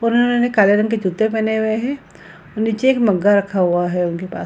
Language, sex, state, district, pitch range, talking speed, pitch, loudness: Hindi, female, Bihar, Samastipur, 185-230 Hz, 215 wpm, 220 Hz, -17 LUFS